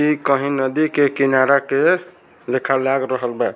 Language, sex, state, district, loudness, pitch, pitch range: Bhojpuri, male, Bihar, Saran, -18 LUFS, 135 Hz, 130-145 Hz